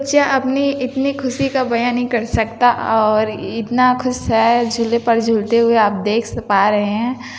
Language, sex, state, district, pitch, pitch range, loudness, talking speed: Hindi, female, Chhattisgarh, Bilaspur, 235 Hz, 225-255 Hz, -16 LUFS, 185 wpm